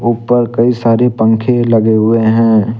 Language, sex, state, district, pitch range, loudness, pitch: Hindi, male, Jharkhand, Deoghar, 110-120 Hz, -11 LUFS, 115 Hz